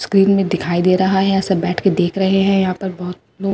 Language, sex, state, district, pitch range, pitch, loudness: Hindi, female, Bihar, Katihar, 180-195 Hz, 190 Hz, -16 LUFS